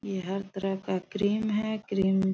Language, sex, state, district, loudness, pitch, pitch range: Hindi, female, Jharkhand, Sahebganj, -30 LUFS, 195 Hz, 190-210 Hz